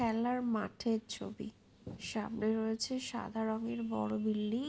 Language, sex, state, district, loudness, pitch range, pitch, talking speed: Bengali, female, West Bengal, Purulia, -37 LUFS, 215-240 Hz, 225 Hz, 130 wpm